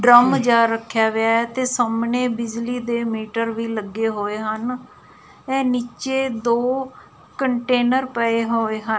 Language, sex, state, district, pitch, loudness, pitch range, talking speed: Punjabi, female, Punjab, Fazilka, 235 Hz, -20 LUFS, 225-250 Hz, 140 wpm